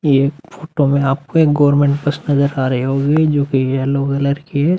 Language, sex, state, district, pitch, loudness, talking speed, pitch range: Hindi, male, Uttar Pradesh, Muzaffarnagar, 140 Hz, -15 LUFS, 200 wpm, 140-145 Hz